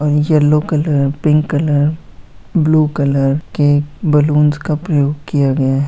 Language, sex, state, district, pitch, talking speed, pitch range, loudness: Hindi, female, Bihar, Muzaffarpur, 150 Hz, 145 wpm, 145-155 Hz, -14 LUFS